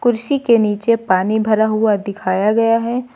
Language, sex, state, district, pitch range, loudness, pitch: Hindi, female, Uttar Pradesh, Lucknow, 205-235 Hz, -16 LUFS, 220 Hz